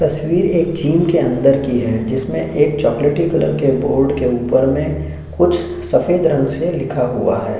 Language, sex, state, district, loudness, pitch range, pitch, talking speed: Hindi, male, Chhattisgarh, Sukma, -16 LUFS, 120-155 Hz, 140 Hz, 190 wpm